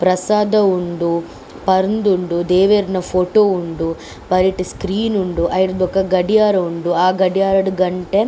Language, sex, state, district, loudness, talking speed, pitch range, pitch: Tulu, female, Karnataka, Dakshina Kannada, -16 LUFS, 125 wpm, 180-195 Hz, 185 Hz